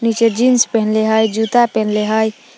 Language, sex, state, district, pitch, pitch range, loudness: Magahi, female, Jharkhand, Palamu, 220 Hz, 220-235 Hz, -14 LUFS